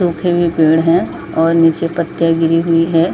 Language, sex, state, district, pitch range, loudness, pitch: Hindi, female, Jharkhand, Jamtara, 165-170 Hz, -14 LUFS, 165 Hz